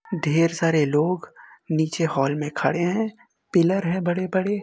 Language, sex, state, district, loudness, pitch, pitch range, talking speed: Hindi, male, Uttar Pradesh, Etah, -23 LUFS, 170 Hz, 155-185 Hz, 145 wpm